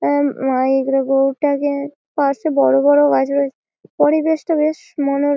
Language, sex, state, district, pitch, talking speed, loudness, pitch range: Bengali, female, West Bengal, Malda, 285 Hz, 90 wpm, -17 LUFS, 270-295 Hz